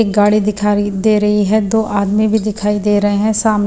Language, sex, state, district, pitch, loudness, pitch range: Hindi, female, Bihar, Patna, 210 Hz, -14 LUFS, 205-215 Hz